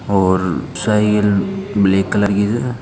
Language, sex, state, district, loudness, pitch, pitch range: Marwari, male, Rajasthan, Nagaur, -16 LUFS, 100 Hz, 95-105 Hz